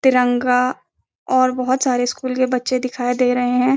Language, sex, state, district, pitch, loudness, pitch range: Hindi, female, Uttarakhand, Uttarkashi, 255 Hz, -18 LUFS, 250-255 Hz